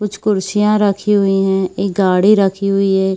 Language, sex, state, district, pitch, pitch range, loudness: Hindi, female, Chhattisgarh, Bilaspur, 195 Hz, 190-210 Hz, -14 LUFS